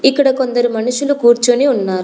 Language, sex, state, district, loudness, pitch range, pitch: Telugu, female, Telangana, Komaram Bheem, -13 LUFS, 235-270 Hz, 250 Hz